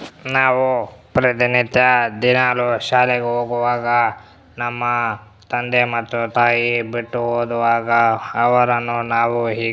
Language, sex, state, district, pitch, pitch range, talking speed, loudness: Kannada, male, Karnataka, Bellary, 120 Hz, 115-125 Hz, 95 wpm, -17 LUFS